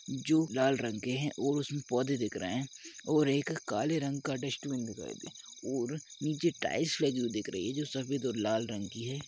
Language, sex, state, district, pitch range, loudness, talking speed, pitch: Hindi, male, Rajasthan, Churu, 125-150 Hz, -33 LUFS, 220 wpm, 135 Hz